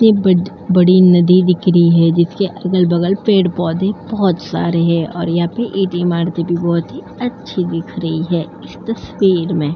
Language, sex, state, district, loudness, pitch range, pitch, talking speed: Hindi, female, Uttar Pradesh, Jalaun, -15 LUFS, 170-190 Hz, 175 Hz, 135 wpm